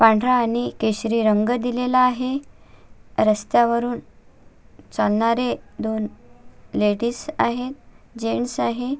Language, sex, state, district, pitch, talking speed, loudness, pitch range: Marathi, female, Maharashtra, Solapur, 235 Hz, 85 wpm, -22 LUFS, 215-245 Hz